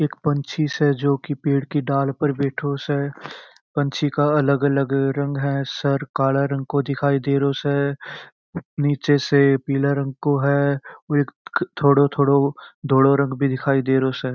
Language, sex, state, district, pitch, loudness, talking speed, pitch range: Marwari, male, Rajasthan, Churu, 140 Hz, -20 LUFS, 170 wpm, 140-145 Hz